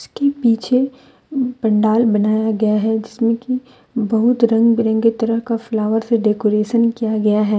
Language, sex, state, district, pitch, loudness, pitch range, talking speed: Hindi, female, Jharkhand, Deoghar, 225 Hz, -17 LUFS, 215-235 Hz, 150 wpm